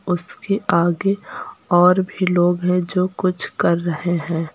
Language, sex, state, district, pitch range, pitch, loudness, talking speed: Hindi, female, Uttar Pradesh, Lucknow, 175-185 Hz, 180 Hz, -19 LUFS, 160 wpm